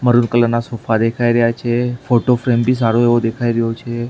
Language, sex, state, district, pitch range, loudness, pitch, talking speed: Gujarati, male, Maharashtra, Mumbai Suburban, 115-120 Hz, -16 LUFS, 120 Hz, 220 wpm